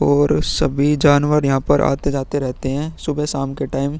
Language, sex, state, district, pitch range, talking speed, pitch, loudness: Hindi, female, Bihar, Vaishali, 135-150 Hz, 195 wpm, 145 Hz, -18 LUFS